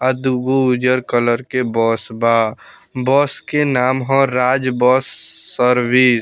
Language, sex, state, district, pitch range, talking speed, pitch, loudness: Bhojpuri, male, Bihar, Muzaffarpur, 120-130 Hz, 145 wpm, 125 Hz, -16 LUFS